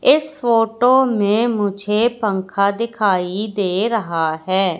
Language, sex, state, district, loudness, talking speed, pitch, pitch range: Hindi, female, Madhya Pradesh, Katni, -18 LUFS, 115 wpm, 210 Hz, 195-230 Hz